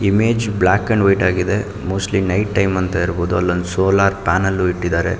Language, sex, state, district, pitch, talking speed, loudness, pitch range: Kannada, male, Karnataka, Mysore, 95 Hz, 160 wpm, -17 LUFS, 90-100 Hz